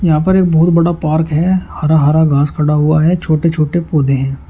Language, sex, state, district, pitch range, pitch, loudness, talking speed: Hindi, male, Uttar Pradesh, Shamli, 150-170 Hz, 155 Hz, -13 LUFS, 225 wpm